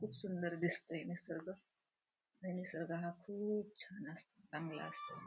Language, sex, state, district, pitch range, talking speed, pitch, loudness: Marathi, female, Maharashtra, Dhule, 170-205 Hz, 135 wpm, 180 Hz, -45 LUFS